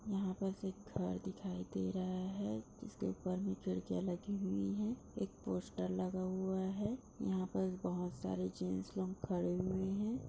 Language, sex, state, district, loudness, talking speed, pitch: Hindi, female, Bihar, Darbhanga, -41 LUFS, 170 wpm, 180 Hz